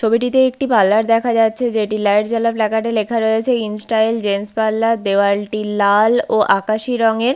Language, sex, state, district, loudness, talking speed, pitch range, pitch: Bengali, female, West Bengal, Paschim Medinipur, -16 LUFS, 170 wpm, 210-230 Hz, 220 Hz